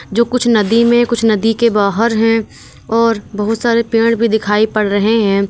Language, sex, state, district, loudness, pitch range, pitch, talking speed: Hindi, female, Uttar Pradesh, Lalitpur, -13 LUFS, 215-230 Hz, 225 Hz, 195 wpm